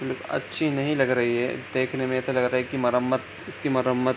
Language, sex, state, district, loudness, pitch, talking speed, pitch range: Hindi, male, Bihar, East Champaran, -25 LUFS, 130 Hz, 230 wpm, 125-135 Hz